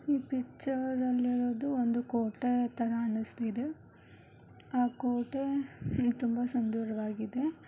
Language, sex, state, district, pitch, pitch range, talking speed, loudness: Kannada, male, Karnataka, Gulbarga, 245 Hz, 235-260 Hz, 95 wpm, -33 LUFS